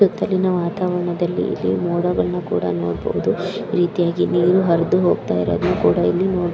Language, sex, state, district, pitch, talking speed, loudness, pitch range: Kannada, female, Karnataka, Raichur, 175 Hz, 140 wpm, -19 LUFS, 170-180 Hz